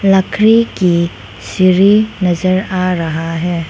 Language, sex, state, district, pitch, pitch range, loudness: Hindi, female, Arunachal Pradesh, Lower Dibang Valley, 185 Hz, 170-195 Hz, -13 LUFS